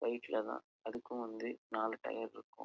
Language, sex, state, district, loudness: Tamil, male, Karnataka, Chamarajanagar, -42 LUFS